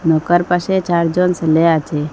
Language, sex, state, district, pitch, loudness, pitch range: Bengali, female, Assam, Hailakandi, 170 Hz, -15 LUFS, 160-180 Hz